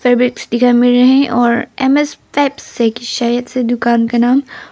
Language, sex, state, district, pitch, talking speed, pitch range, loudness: Hindi, female, Arunachal Pradesh, Papum Pare, 245 Hz, 100 wpm, 235-255 Hz, -13 LUFS